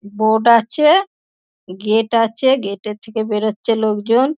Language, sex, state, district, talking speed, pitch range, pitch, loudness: Bengali, female, West Bengal, Dakshin Dinajpur, 125 wpm, 215-235 Hz, 220 Hz, -16 LUFS